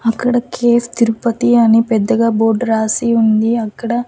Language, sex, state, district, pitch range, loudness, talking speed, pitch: Telugu, female, Andhra Pradesh, Annamaya, 225-240 Hz, -14 LUFS, 130 wpm, 230 Hz